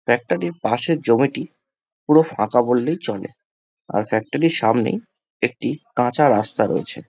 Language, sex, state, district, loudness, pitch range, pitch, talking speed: Bengali, male, West Bengal, Jhargram, -20 LUFS, 110-155 Hz, 120 Hz, 135 wpm